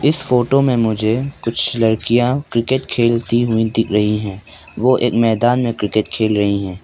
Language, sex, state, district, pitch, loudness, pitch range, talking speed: Hindi, male, Arunachal Pradesh, Papum Pare, 115 Hz, -16 LUFS, 110-120 Hz, 175 wpm